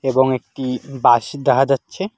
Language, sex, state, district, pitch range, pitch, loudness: Bengali, male, West Bengal, Alipurduar, 130-140 Hz, 135 Hz, -18 LUFS